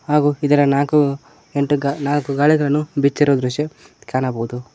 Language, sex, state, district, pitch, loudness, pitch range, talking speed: Kannada, male, Karnataka, Koppal, 145 Hz, -18 LUFS, 140-145 Hz, 125 wpm